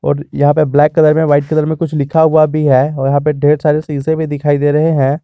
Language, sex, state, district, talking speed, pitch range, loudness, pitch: Hindi, male, Jharkhand, Garhwa, 285 wpm, 145-155 Hz, -12 LUFS, 150 Hz